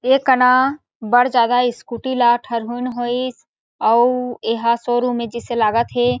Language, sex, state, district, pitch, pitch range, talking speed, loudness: Chhattisgarhi, female, Chhattisgarh, Sarguja, 245 Hz, 235-250 Hz, 145 wpm, -18 LUFS